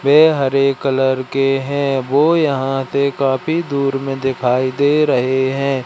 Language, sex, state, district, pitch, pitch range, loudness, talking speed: Hindi, male, Madhya Pradesh, Katni, 135 Hz, 135-140 Hz, -16 LUFS, 155 wpm